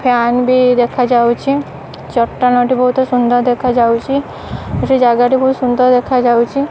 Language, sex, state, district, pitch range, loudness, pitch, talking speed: Odia, female, Odisha, Khordha, 240-255 Hz, -13 LUFS, 250 Hz, 105 wpm